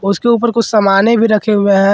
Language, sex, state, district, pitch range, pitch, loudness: Hindi, male, Jharkhand, Ranchi, 200-230 Hz, 215 Hz, -12 LUFS